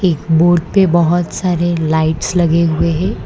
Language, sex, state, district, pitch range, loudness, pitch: Hindi, female, Gujarat, Valsad, 165-175 Hz, -14 LUFS, 170 Hz